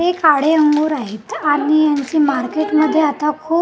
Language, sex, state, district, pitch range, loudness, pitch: Marathi, female, Maharashtra, Gondia, 290-310 Hz, -15 LUFS, 300 Hz